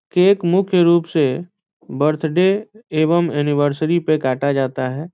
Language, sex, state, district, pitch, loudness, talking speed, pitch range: Hindi, male, Bihar, Saran, 160 Hz, -17 LUFS, 140 wpm, 145-180 Hz